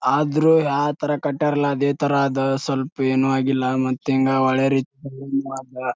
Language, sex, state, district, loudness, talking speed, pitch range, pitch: Kannada, male, Karnataka, Bijapur, -20 LUFS, 110 wpm, 135-145 Hz, 135 Hz